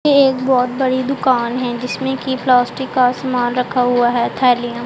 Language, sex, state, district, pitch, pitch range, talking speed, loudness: Hindi, female, Punjab, Pathankot, 250 Hz, 245-265 Hz, 175 wpm, -16 LUFS